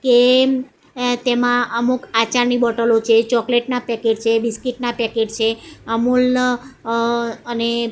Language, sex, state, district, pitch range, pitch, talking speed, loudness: Gujarati, female, Gujarat, Gandhinagar, 230-250 Hz, 240 Hz, 135 wpm, -18 LUFS